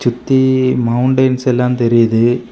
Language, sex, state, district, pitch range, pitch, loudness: Tamil, male, Tamil Nadu, Kanyakumari, 120-130 Hz, 125 Hz, -13 LUFS